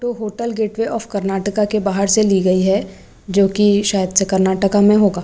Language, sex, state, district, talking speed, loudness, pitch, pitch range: Hindi, female, Maharashtra, Gondia, 195 wpm, -16 LUFS, 205 Hz, 195-215 Hz